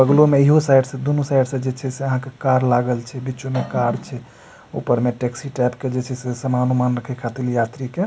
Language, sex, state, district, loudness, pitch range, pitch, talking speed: Maithili, male, Bihar, Supaul, -20 LUFS, 125-135 Hz, 130 Hz, 225 wpm